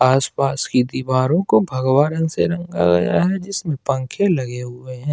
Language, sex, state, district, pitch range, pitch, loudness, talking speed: Hindi, male, Jharkhand, Ranchi, 125-155 Hz, 130 Hz, -19 LUFS, 175 wpm